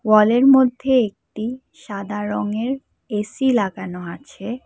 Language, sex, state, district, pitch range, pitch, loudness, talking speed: Bengali, female, Assam, Hailakandi, 205-260 Hz, 220 Hz, -20 LUFS, 105 wpm